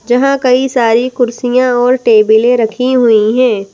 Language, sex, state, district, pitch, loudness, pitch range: Hindi, female, Madhya Pradesh, Bhopal, 245 Hz, -10 LUFS, 230-255 Hz